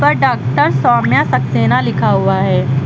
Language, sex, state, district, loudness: Hindi, female, Uttar Pradesh, Lucknow, -13 LUFS